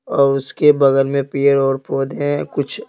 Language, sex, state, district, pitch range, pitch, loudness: Hindi, male, Bihar, Patna, 135-140 Hz, 140 Hz, -16 LUFS